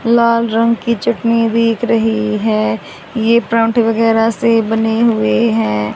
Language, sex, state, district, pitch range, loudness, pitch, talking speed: Hindi, female, Haryana, Rohtak, 170-230 Hz, -14 LUFS, 225 Hz, 140 wpm